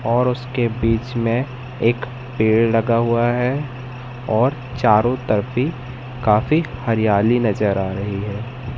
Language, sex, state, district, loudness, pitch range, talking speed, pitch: Hindi, male, Madhya Pradesh, Katni, -19 LUFS, 110-125 Hz, 130 wpm, 120 Hz